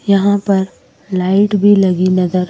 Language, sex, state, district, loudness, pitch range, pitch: Hindi, female, Madhya Pradesh, Bhopal, -13 LUFS, 185-200 Hz, 195 Hz